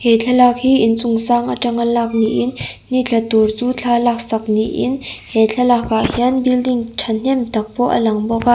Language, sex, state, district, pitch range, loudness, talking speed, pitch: Mizo, female, Mizoram, Aizawl, 225-245 Hz, -16 LUFS, 205 wpm, 235 Hz